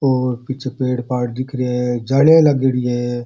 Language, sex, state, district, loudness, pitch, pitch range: Rajasthani, male, Rajasthan, Churu, -17 LUFS, 125 Hz, 125-135 Hz